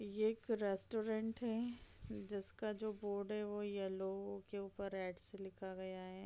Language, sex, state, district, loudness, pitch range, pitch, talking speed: Hindi, female, Bihar, East Champaran, -43 LUFS, 190-215 Hz, 200 Hz, 165 wpm